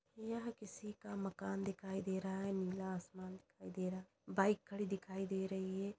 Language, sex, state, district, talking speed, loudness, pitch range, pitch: Hindi, female, Uttar Pradesh, Jalaun, 200 wpm, -43 LUFS, 190-200 Hz, 195 Hz